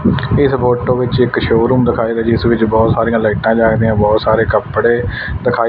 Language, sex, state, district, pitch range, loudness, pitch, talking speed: Punjabi, male, Punjab, Fazilka, 110-125 Hz, -13 LUFS, 115 Hz, 170 wpm